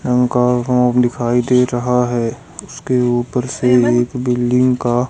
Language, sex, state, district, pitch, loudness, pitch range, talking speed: Hindi, female, Haryana, Jhajjar, 125 Hz, -15 LUFS, 120-125 Hz, 120 wpm